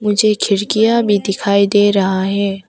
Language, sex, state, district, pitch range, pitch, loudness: Hindi, female, Arunachal Pradesh, Papum Pare, 195-210 Hz, 200 Hz, -14 LUFS